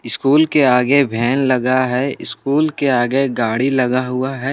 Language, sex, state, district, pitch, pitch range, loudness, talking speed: Hindi, male, Jharkhand, Palamu, 130 Hz, 125-140 Hz, -16 LUFS, 170 wpm